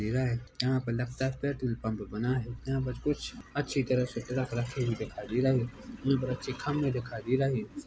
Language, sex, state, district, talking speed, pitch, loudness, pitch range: Hindi, male, Chhattisgarh, Korba, 235 wpm, 125 Hz, -32 LUFS, 120-135 Hz